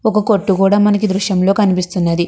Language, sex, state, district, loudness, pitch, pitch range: Telugu, female, Andhra Pradesh, Krishna, -14 LUFS, 195 Hz, 185-205 Hz